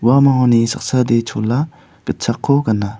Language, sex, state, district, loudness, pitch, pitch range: Garo, male, Meghalaya, South Garo Hills, -16 LUFS, 120 Hz, 115-140 Hz